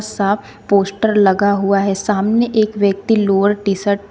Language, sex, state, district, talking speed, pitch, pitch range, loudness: Hindi, female, Uttar Pradesh, Shamli, 160 wpm, 200 Hz, 200-210 Hz, -15 LUFS